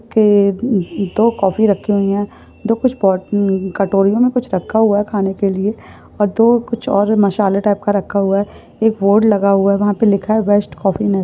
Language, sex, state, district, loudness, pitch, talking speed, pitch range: Hindi, female, West Bengal, Purulia, -15 LUFS, 205 Hz, 215 wpm, 195-220 Hz